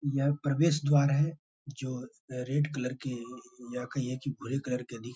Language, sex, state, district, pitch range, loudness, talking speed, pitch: Hindi, male, Bihar, Bhagalpur, 125-140 Hz, -31 LUFS, 185 wpm, 135 Hz